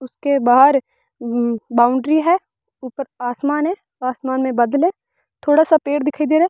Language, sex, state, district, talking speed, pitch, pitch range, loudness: Hindi, female, Rajasthan, Bikaner, 175 wpm, 280 Hz, 255-310 Hz, -17 LUFS